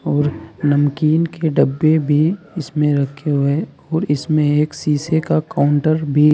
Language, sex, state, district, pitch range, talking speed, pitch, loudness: Hindi, male, Uttar Pradesh, Saharanpur, 145-160 Hz, 140 wpm, 150 Hz, -17 LUFS